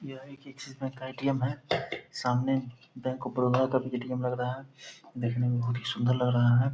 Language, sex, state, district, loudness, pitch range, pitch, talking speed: Hindi, male, Bihar, Purnia, -30 LUFS, 125-135 Hz, 130 Hz, 240 wpm